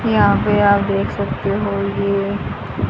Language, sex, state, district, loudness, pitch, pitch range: Hindi, female, Haryana, Charkhi Dadri, -18 LUFS, 200 Hz, 200-205 Hz